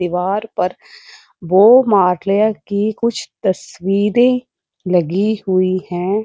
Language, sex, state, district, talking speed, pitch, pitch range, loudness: Hindi, female, Uttar Pradesh, Muzaffarnagar, 95 wpm, 200 Hz, 185-220 Hz, -16 LUFS